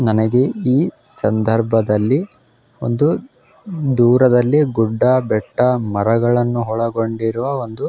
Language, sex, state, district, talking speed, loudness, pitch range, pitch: Kannada, male, Karnataka, Bellary, 75 wpm, -17 LUFS, 115-130 Hz, 120 Hz